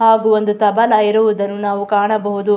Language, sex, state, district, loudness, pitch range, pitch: Kannada, female, Karnataka, Mysore, -15 LUFS, 205-220 Hz, 210 Hz